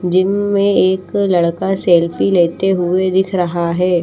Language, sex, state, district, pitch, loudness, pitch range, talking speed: Hindi, female, Haryana, Charkhi Dadri, 185 Hz, -15 LUFS, 175-190 Hz, 150 wpm